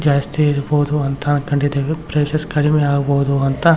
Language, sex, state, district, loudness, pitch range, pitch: Kannada, male, Karnataka, Raichur, -17 LUFS, 140-150 Hz, 145 Hz